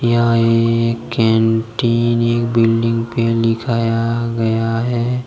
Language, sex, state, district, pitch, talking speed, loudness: Hindi, male, Jharkhand, Deoghar, 115 Hz, 100 wpm, -16 LUFS